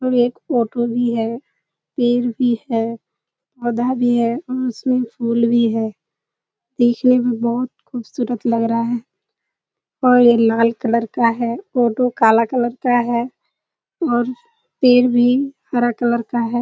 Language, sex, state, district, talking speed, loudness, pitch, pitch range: Hindi, female, Bihar, Kishanganj, 145 wpm, -18 LUFS, 240 Hz, 235-250 Hz